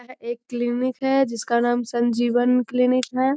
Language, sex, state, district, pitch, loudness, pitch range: Hindi, female, Bihar, Jamui, 245 Hz, -22 LUFS, 240-255 Hz